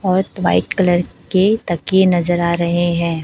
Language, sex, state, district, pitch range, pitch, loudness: Hindi, female, Chhattisgarh, Raipur, 170-190 Hz, 175 Hz, -16 LUFS